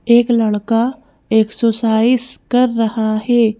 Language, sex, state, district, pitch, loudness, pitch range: Hindi, female, Madhya Pradesh, Bhopal, 230 Hz, -15 LUFS, 220-245 Hz